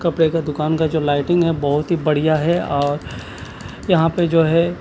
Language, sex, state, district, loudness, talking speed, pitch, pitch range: Hindi, male, Chandigarh, Chandigarh, -18 LUFS, 200 wpm, 160 Hz, 145-170 Hz